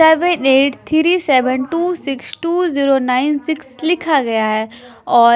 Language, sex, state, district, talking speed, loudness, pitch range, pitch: Hindi, female, Punjab, Pathankot, 155 wpm, -15 LUFS, 255-325 Hz, 280 Hz